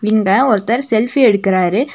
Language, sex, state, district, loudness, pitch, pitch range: Tamil, female, Tamil Nadu, Nilgiris, -14 LUFS, 215 Hz, 200-245 Hz